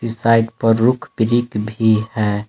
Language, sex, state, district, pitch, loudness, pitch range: Hindi, male, Jharkhand, Palamu, 115 Hz, -17 LUFS, 110-120 Hz